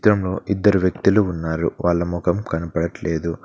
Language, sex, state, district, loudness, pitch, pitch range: Telugu, male, Telangana, Mahabubabad, -20 LUFS, 85 Hz, 85-100 Hz